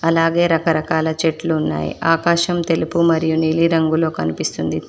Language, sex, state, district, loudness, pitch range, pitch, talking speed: Telugu, female, Telangana, Mahabubabad, -18 LUFS, 160-165 Hz, 160 Hz, 110 wpm